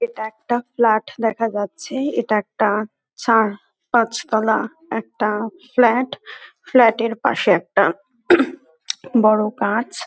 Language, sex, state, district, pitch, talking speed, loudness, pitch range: Bengali, female, West Bengal, North 24 Parganas, 230 Hz, 105 wpm, -19 LUFS, 215-250 Hz